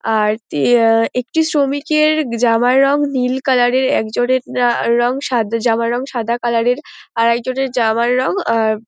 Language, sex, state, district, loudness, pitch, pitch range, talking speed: Bengali, female, West Bengal, Dakshin Dinajpur, -16 LUFS, 245 Hz, 230-265 Hz, 150 wpm